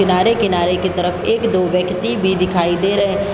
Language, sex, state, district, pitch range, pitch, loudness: Hindi, female, Bihar, Gopalganj, 180-200 Hz, 185 Hz, -16 LUFS